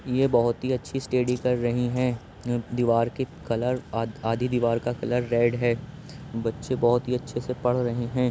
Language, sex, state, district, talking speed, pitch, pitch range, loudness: Hindi, male, Uttar Pradesh, Jyotiba Phule Nagar, 195 wpm, 120 Hz, 120-125 Hz, -26 LUFS